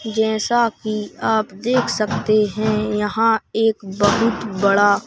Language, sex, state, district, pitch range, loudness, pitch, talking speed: Hindi, male, Madhya Pradesh, Bhopal, 210-225 Hz, -19 LUFS, 215 Hz, 120 wpm